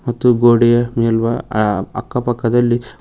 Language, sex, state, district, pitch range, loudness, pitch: Kannada, male, Karnataka, Koppal, 115-120 Hz, -15 LUFS, 120 Hz